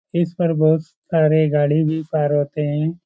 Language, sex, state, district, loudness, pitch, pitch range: Hindi, male, Bihar, Supaul, -19 LUFS, 155 Hz, 150-165 Hz